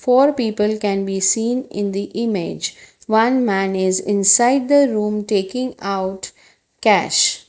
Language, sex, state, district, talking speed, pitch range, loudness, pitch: English, female, Gujarat, Valsad, 135 wpm, 195-245 Hz, -18 LUFS, 210 Hz